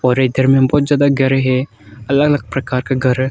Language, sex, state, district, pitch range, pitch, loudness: Hindi, male, Arunachal Pradesh, Longding, 130-140 Hz, 130 Hz, -15 LUFS